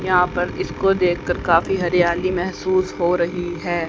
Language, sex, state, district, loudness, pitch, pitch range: Hindi, female, Haryana, Rohtak, -20 LUFS, 175 Hz, 175-185 Hz